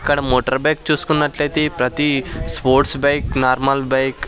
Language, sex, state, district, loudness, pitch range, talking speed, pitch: Telugu, male, Andhra Pradesh, Sri Satya Sai, -17 LUFS, 130-150 Hz, 140 wpm, 140 Hz